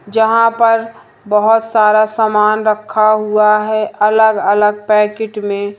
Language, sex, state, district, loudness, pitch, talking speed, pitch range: Hindi, female, Madhya Pradesh, Umaria, -13 LUFS, 215 Hz, 125 wpm, 210-220 Hz